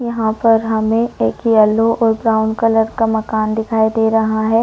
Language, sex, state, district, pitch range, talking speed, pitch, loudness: Hindi, female, Chhattisgarh, Korba, 220-225 Hz, 195 wpm, 220 Hz, -15 LUFS